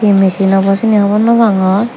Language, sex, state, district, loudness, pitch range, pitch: Chakma, female, Tripura, Dhalai, -11 LUFS, 195-220 Hz, 200 Hz